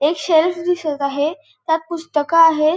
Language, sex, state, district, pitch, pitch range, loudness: Marathi, female, Goa, North and South Goa, 320 Hz, 300-335 Hz, -18 LUFS